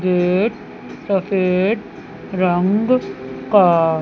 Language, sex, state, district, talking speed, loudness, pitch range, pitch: Hindi, female, Chandigarh, Chandigarh, 75 wpm, -17 LUFS, 180-210 Hz, 190 Hz